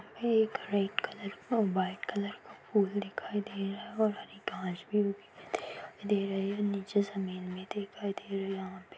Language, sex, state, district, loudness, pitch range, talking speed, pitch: Hindi, female, Bihar, Vaishali, -34 LUFS, 195-210 Hz, 185 wpm, 200 Hz